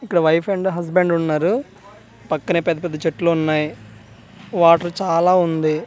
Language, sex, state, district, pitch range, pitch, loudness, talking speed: Telugu, male, Andhra Pradesh, Manyam, 155-180 Hz, 170 Hz, -18 LUFS, 145 wpm